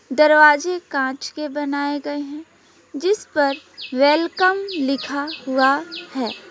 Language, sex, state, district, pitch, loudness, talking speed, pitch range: Hindi, female, West Bengal, Alipurduar, 290 Hz, -19 LUFS, 110 wpm, 275-325 Hz